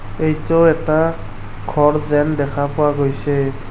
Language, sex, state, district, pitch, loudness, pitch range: Assamese, male, Assam, Kamrup Metropolitan, 145 Hz, -17 LUFS, 135-155 Hz